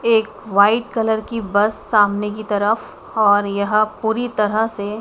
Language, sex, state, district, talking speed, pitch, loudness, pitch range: Hindi, female, Madhya Pradesh, Dhar, 155 wpm, 215 Hz, -18 LUFS, 205-220 Hz